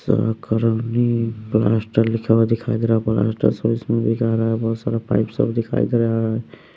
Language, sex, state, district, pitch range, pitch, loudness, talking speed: Hindi, male, Bihar, West Champaran, 110-115 Hz, 115 Hz, -20 LUFS, 180 wpm